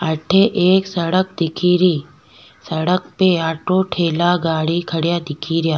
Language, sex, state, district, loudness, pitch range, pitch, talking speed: Rajasthani, female, Rajasthan, Nagaur, -17 LUFS, 160-180 Hz, 170 Hz, 125 wpm